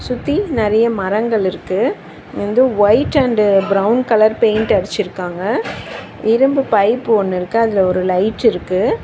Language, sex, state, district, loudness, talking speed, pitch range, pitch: Tamil, female, Tamil Nadu, Chennai, -15 LUFS, 125 wpm, 195-235 Hz, 215 Hz